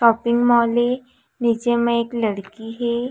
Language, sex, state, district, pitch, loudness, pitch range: Chhattisgarhi, female, Chhattisgarh, Raigarh, 235 Hz, -20 LUFS, 230-240 Hz